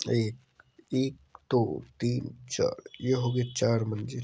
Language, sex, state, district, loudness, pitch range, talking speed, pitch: Hindi, male, Bihar, Supaul, -30 LUFS, 120-130 Hz, 85 wpm, 125 Hz